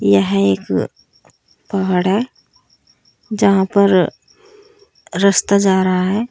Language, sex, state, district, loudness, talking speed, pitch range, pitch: Hindi, female, Uttar Pradesh, Saharanpur, -15 LUFS, 95 wpm, 185-215 Hz, 195 Hz